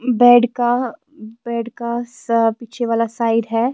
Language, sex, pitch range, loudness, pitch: Urdu, female, 230-245 Hz, -18 LUFS, 235 Hz